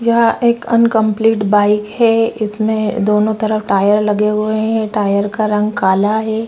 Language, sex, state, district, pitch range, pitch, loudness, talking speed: Hindi, female, Chhattisgarh, Korba, 210-225 Hz, 215 Hz, -14 LUFS, 160 wpm